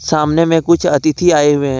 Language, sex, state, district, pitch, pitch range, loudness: Hindi, male, Jharkhand, Ranchi, 155 Hz, 145-165 Hz, -13 LUFS